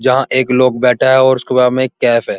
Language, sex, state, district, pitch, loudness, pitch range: Hindi, male, Uttar Pradesh, Muzaffarnagar, 130 Hz, -12 LUFS, 125-130 Hz